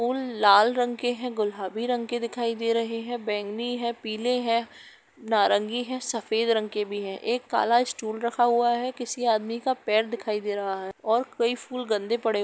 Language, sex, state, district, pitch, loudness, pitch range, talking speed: Hindi, female, Uttar Pradesh, Etah, 230 Hz, -26 LUFS, 215-245 Hz, 205 wpm